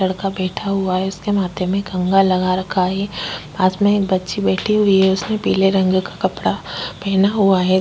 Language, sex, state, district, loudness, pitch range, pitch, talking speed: Hindi, female, Uttar Pradesh, Jyotiba Phule Nagar, -18 LUFS, 185-200 Hz, 190 Hz, 200 wpm